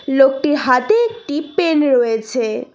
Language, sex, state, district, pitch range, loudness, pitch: Bengali, female, West Bengal, Cooch Behar, 250-315 Hz, -16 LUFS, 285 Hz